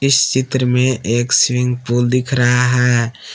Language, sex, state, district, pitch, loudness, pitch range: Hindi, male, Jharkhand, Palamu, 125 Hz, -15 LUFS, 120-130 Hz